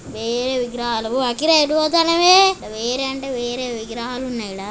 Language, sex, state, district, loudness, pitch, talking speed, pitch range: Telugu, female, Andhra Pradesh, Chittoor, -18 LUFS, 250 Hz, 115 wpm, 235-300 Hz